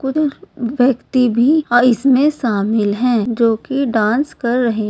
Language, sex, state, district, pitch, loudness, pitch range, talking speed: Hindi, female, Bihar, Begusarai, 245 Hz, -15 LUFS, 230-275 Hz, 120 wpm